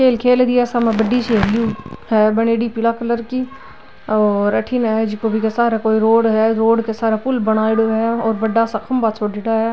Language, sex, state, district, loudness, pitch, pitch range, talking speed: Marwari, female, Rajasthan, Nagaur, -17 LUFS, 225 Hz, 220-235 Hz, 210 wpm